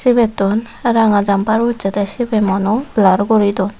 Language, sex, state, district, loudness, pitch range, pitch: Chakma, female, Tripura, Unakoti, -15 LUFS, 200-235 Hz, 215 Hz